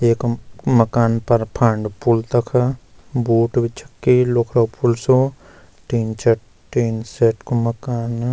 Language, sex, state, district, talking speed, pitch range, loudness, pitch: Garhwali, male, Uttarakhand, Uttarkashi, 120 wpm, 115-125 Hz, -19 LUFS, 120 Hz